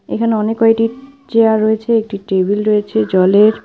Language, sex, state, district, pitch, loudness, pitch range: Bengali, female, West Bengal, Alipurduar, 220 Hz, -14 LUFS, 210-225 Hz